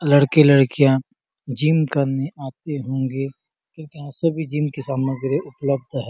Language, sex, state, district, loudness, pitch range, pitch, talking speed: Hindi, male, Chhattisgarh, Bastar, -20 LUFS, 135-150 Hz, 140 Hz, 140 wpm